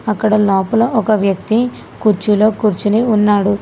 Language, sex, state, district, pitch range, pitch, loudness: Telugu, female, Telangana, Hyderabad, 205-220 Hz, 215 Hz, -14 LUFS